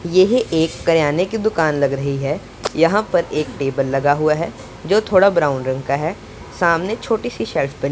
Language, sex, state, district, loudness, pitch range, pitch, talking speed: Hindi, male, Punjab, Pathankot, -18 LUFS, 140-190 Hz, 160 Hz, 195 wpm